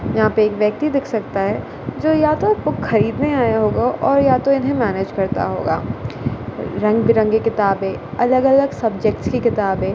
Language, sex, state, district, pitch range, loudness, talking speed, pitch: Hindi, female, Gujarat, Gandhinagar, 210-275 Hz, -18 LUFS, 175 wpm, 225 Hz